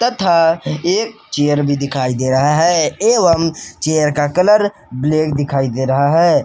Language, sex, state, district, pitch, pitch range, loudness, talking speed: Hindi, male, Jharkhand, Palamu, 155 Hz, 140-175 Hz, -15 LUFS, 160 wpm